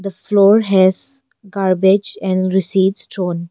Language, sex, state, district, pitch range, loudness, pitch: English, female, Arunachal Pradesh, Longding, 185-200 Hz, -15 LUFS, 190 Hz